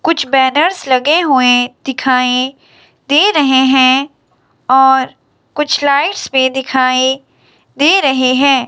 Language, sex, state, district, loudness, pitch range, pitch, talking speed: Hindi, male, Himachal Pradesh, Shimla, -11 LUFS, 260-290 Hz, 265 Hz, 110 wpm